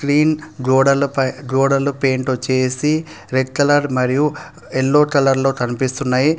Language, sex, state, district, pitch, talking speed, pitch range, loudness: Telugu, male, Telangana, Hyderabad, 135 Hz, 120 wpm, 130-145 Hz, -17 LUFS